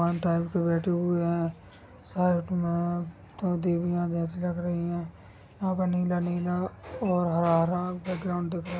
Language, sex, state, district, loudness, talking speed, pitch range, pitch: Hindi, male, Chhattisgarh, Sukma, -28 LUFS, 145 wpm, 170-180 Hz, 175 Hz